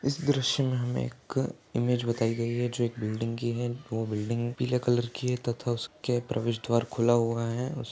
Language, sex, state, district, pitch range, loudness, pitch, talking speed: Hindi, male, Uttar Pradesh, Ghazipur, 115-125 Hz, -29 LUFS, 120 Hz, 205 wpm